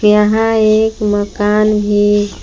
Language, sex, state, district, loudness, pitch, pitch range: Hindi, female, Jharkhand, Palamu, -12 LUFS, 210 Hz, 205-215 Hz